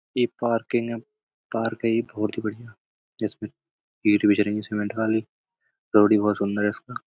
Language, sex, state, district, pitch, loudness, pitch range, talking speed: Hindi, male, Uttar Pradesh, Budaun, 110 Hz, -24 LUFS, 105-115 Hz, 145 wpm